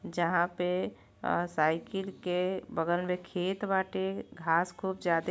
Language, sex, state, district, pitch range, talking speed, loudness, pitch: Bhojpuri, female, Uttar Pradesh, Deoria, 170-190 Hz, 135 wpm, -32 LUFS, 180 Hz